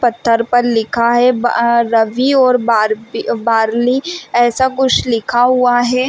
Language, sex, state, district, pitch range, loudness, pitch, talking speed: Hindi, female, Chhattisgarh, Rajnandgaon, 230-250 Hz, -13 LUFS, 240 Hz, 160 wpm